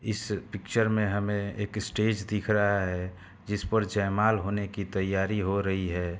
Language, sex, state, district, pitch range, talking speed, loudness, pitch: Hindi, male, Uttar Pradesh, Hamirpur, 95-105 Hz, 165 wpm, -29 LUFS, 100 Hz